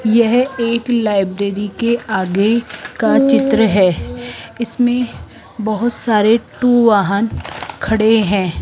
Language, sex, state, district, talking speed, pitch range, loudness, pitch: Hindi, female, Rajasthan, Jaipur, 105 wpm, 200-235 Hz, -15 LUFS, 220 Hz